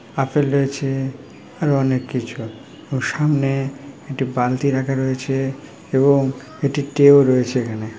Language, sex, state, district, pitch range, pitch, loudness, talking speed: Bengali, female, West Bengal, Malda, 130-140 Hz, 135 Hz, -19 LUFS, 120 wpm